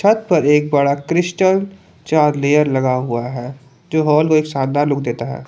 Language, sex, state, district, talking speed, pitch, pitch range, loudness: Hindi, male, Jharkhand, Palamu, 185 wpm, 145 Hz, 135-160 Hz, -16 LUFS